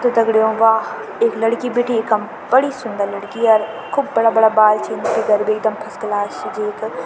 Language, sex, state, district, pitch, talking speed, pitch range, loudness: Garhwali, female, Uttarakhand, Tehri Garhwal, 225 Hz, 195 wpm, 215-245 Hz, -17 LUFS